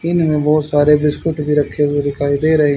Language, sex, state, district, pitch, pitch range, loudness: Hindi, male, Haryana, Charkhi Dadri, 150 Hz, 145-155 Hz, -15 LUFS